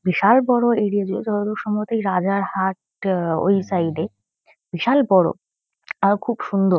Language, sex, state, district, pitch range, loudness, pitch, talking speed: Bengali, female, West Bengal, Kolkata, 185-210 Hz, -20 LUFS, 195 Hz, 160 wpm